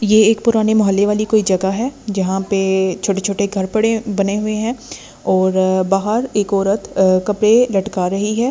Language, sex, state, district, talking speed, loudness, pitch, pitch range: Hindi, female, Delhi, New Delhi, 170 wpm, -16 LUFS, 205 Hz, 190-215 Hz